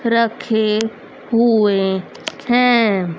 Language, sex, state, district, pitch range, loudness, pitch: Hindi, female, Haryana, Rohtak, 205-235 Hz, -16 LUFS, 220 Hz